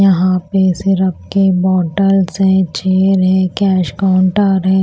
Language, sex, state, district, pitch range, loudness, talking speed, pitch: Hindi, female, Maharashtra, Washim, 185-195 Hz, -13 LUFS, 135 wpm, 190 Hz